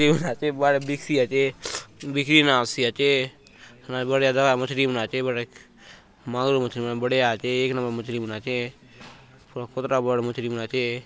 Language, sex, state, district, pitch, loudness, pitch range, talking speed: Halbi, male, Chhattisgarh, Bastar, 130 Hz, -23 LUFS, 120-135 Hz, 165 wpm